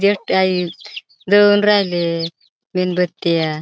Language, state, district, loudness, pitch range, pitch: Bhili, Maharashtra, Dhule, -17 LUFS, 165-200 Hz, 180 Hz